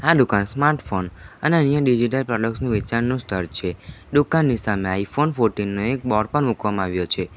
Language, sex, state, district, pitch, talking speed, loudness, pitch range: Gujarati, male, Gujarat, Valsad, 115 Hz, 180 wpm, -21 LUFS, 100-135 Hz